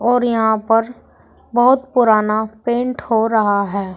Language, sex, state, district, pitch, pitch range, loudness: Hindi, female, Uttar Pradesh, Saharanpur, 225 Hz, 215-245 Hz, -16 LUFS